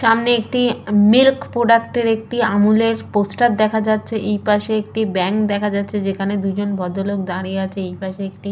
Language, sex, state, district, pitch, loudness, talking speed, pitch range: Bengali, female, West Bengal, Purulia, 210 Hz, -18 LUFS, 160 wpm, 195-225 Hz